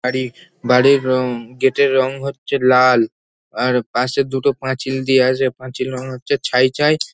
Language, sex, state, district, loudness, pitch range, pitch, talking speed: Bengali, male, West Bengal, North 24 Parganas, -17 LUFS, 125-135 Hz, 130 Hz, 170 wpm